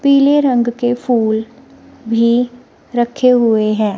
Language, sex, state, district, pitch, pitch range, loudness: Hindi, female, Himachal Pradesh, Shimla, 240 Hz, 230-255 Hz, -14 LUFS